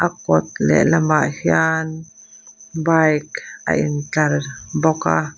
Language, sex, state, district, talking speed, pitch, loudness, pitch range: Mizo, female, Mizoram, Aizawl, 125 wpm, 155 Hz, -18 LUFS, 145-160 Hz